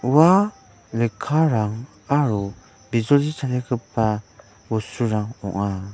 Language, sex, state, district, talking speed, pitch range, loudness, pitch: Garo, male, Meghalaya, West Garo Hills, 60 wpm, 105-135 Hz, -22 LUFS, 115 Hz